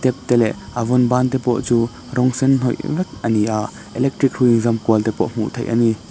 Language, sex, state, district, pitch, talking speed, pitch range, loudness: Mizo, male, Mizoram, Aizawl, 120 Hz, 245 wpm, 115-130 Hz, -18 LUFS